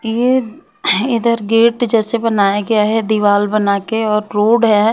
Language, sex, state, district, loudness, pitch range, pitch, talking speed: Hindi, female, Bihar, West Champaran, -14 LUFS, 210-235 Hz, 225 Hz, 160 wpm